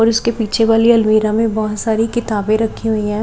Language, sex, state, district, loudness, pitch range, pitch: Hindi, female, Chhattisgarh, Raipur, -15 LUFS, 215-225 Hz, 220 Hz